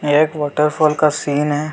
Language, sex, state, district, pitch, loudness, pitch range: Hindi, male, Chhattisgarh, Bilaspur, 150 Hz, -17 LUFS, 145-155 Hz